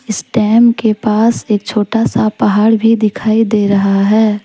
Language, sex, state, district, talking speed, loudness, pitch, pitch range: Hindi, female, Jharkhand, Deoghar, 175 wpm, -12 LUFS, 215 Hz, 210-225 Hz